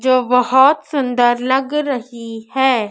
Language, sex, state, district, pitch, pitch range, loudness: Hindi, female, Madhya Pradesh, Dhar, 255 Hz, 240-265 Hz, -15 LUFS